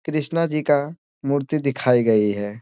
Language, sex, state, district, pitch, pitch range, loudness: Hindi, male, Bihar, Gaya, 140 Hz, 120-155 Hz, -21 LUFS